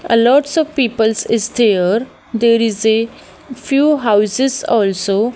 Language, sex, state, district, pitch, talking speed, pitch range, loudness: English, female, Haryana, Jhajjar, 230 Hz, 135 wpm, 220-270 Hz, -14 LUFS